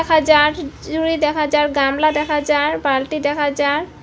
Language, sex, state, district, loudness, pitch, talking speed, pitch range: Bengali, female, Assam, Hailakandi, -17 LUFS, 300 Hz, 165 wpm, 290-310 Hz